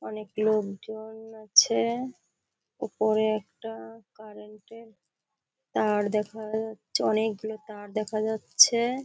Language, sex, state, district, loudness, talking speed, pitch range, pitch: Bengali, female, West Bengal, Kolkata, -26 LUFS, 115 wpm, 210-220 Hz, 215 Hz